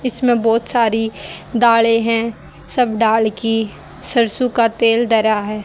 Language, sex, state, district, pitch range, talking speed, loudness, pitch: Hindi, female, Haryana, Charkhi Dadri, 220-235 Hz, 140 wpm, -16 LUFS, 230 Hz